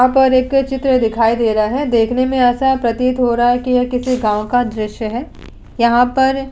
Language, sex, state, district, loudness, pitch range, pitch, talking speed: Hindi, female, Uttar Pradesh, Budaun, -15 LUFS, 235-260 Hz, 245 Hz, 230 wpm